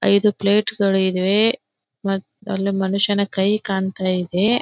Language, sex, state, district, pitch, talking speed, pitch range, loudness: Kannada, female, Karnataka, Belgaum, 200 Hz, 90 wpm, 190-205 Hz, -19 LUFS